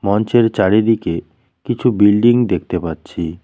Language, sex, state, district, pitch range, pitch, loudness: Bengali, male, West Bengal, Cooch Behar, 100-120 Hz, 110 Hz, -15 LUFS